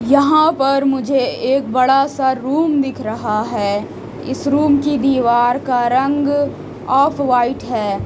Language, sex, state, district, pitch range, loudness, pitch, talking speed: Hindi, female, Chhattisgarh, Raipur, 245-285 Hz, -16 LUFS, 265 Hz, 135 wpm